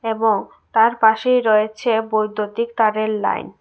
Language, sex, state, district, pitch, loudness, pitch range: Bengali, female, Tripura, West Tripura, 220 Hz, -18 LUFS, 215-225 Hz